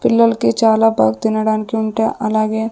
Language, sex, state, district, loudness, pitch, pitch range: Telugu, female, Andhra Pradesh, Sri Satya Sai, -15 LUFS, 220 Hz, 215-225 Hz